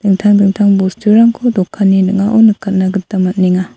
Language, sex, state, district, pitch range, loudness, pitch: Garo, female, Meghalaya, South Garo Hills, 190-210 Hz, -11 LUFS, 195 Hz